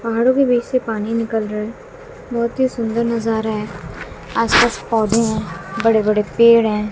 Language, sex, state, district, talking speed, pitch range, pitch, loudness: Hindi, female, Bihar, West Champaran, 175 wpm, 215-235 Hz, 230 Hz, -17 LUFS